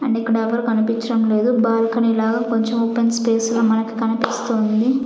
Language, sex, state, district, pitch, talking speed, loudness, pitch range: Telugu, female, Andhra Pradesh, Sri Satya Sai, 230 Hz, 165 wpm, -18 LUFS, 225-235 Hz